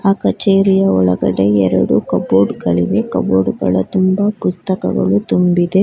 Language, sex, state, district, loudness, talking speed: Kannada, female, Karnataka, Bangalore, -14 LUFS, 105 wpm